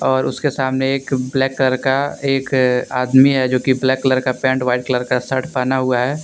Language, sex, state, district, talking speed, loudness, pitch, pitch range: Hindi, male, Jharkhand, Deoghar, 220 wpm, -17 LUFS, 130 Hz, 125-135 Hz